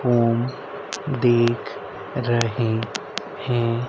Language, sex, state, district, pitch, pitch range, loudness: Hindi, male, Haryana, Rohtak, 120 Hz, 115-125 Hz, -23 LUFS